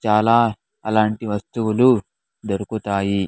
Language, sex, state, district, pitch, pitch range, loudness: Telugu, male, Andhra Pradesh, Sri Satya Sai, 110 Hz, 105-110 Hz, -20 LUFS